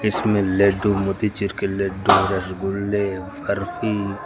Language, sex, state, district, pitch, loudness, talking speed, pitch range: Hindi, male, Uttar Pradesh, Lucknow, 100 Hz, -21 LUFS, 100 wpm, 95-105 Hz